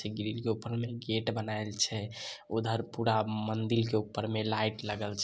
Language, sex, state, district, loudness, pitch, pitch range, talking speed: Maithili, male, Bihar, Samastipur, -33 LUFS, 110 Hz, 105-115 Hz, 185 wpm